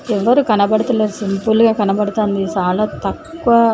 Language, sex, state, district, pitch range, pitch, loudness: Telugu, female, Telangana, Nalgonda, 205-230 Hz, 215 Hz, -16 LUFS